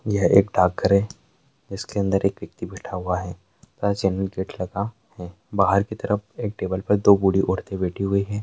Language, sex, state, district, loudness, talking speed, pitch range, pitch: Hindi, male, Bihar, Bhagalpur, -22 LUFS, 200 wpm, 95-105 Hz, 100 Hz